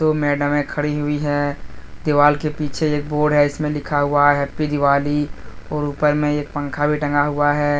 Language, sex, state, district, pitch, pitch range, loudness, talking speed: Hindi, male, Jharkhand, Deoghar, 145 Hz, 145-150 Hz, -19 LUFS, 200 wpm